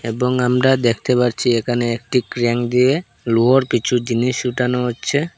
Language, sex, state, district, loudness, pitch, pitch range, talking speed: Bengali, male, Assam, Hailakandi, -18 LUFS, 125 Hz, 120-125 Hz, 145 wpm